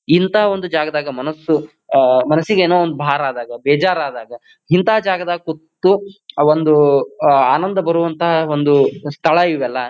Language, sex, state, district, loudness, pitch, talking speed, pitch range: Kannada, male, Karnataka, Bijapur, -15 LUFS, 160 Hz, 140 wpm, 145-180 Hz